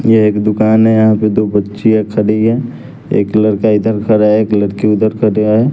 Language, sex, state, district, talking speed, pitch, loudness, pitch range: Hindi, male, Bihar, West Champaran, 210 wpm, 110 Hz, -12 LUFS, 105-110 Hz